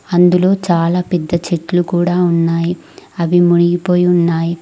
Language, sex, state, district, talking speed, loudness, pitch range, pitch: Telugu, female, Telangana, Mahabubabad, 115 wpm, -14 LUFS, 170-180 Hz, 175 Hz